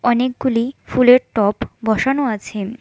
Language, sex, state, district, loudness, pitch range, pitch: Bengali, female, West Bengal, Alipurduar, -17 LUFS, 220-255 Hz, 245 Hz